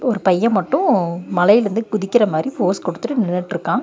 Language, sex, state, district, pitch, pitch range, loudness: Tamil, female, Tamil Nadu, Nilgiris, 205 Hz, 180-230 Hz, -18 LUFS